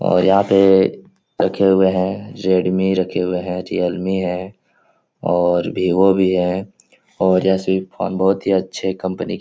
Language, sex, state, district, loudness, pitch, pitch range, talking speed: Hindi, male, Uttar Pradesh, Etah, -17 LUFS, 95 Hz, 90-95 Hz, 155 wpm